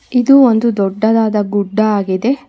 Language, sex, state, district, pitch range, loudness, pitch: Kannada, female, Karnataka, Bangalore, 205-245 Hz, -13 LUFS, 215 Hz